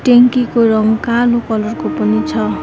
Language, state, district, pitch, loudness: Nepali, West Bengal, Darjeeling, 220 Hz, -14 LUFS